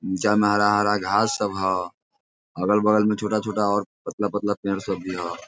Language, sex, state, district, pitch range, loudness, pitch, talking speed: Hindi, male, Bihar, Sitamarhi, 95-105 Hz, -23 LUFS, 105 Hz, 220 wpm